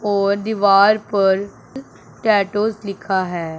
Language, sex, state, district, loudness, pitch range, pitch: Hindi, male, Punjab, Pathankot, -17 LUFS, 195-210 Hz, 200 Hz